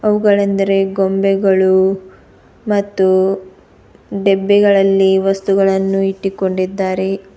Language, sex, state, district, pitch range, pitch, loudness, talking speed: Kannada, female, Karnataka, Bidar, 190-195 Hz, 195 Hz, -14 LUFS, 50 wpm